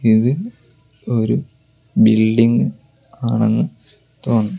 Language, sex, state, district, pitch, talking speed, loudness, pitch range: Malayalam, male, Kerala, Kozhikode, 115 Hz, 65 wpm, -17 LUFS, 110-130 Hz